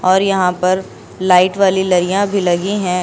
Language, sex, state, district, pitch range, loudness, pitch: Hindi, female, Uttar Pradesh, Lucknow, 180-195 Hz, -14 LUFS, 185 Hz